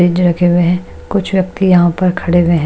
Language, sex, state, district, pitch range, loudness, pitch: Hindi, female, Odisha, Malkangiri, 175-185 Hz, -13 LUFS, 175 Hz